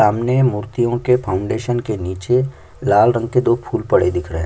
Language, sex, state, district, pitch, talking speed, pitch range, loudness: Hindi, male, Chhattisgarh, Kabirdham, 120 Hz, 200 wpm, 105-125 Hz, -18 LUFS